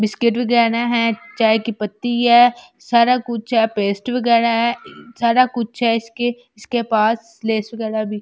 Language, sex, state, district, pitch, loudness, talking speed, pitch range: Hindi, female, Delhi, New Delhi, 235 Hz, -18 LUFS, 170 wpm, 220-240 Hz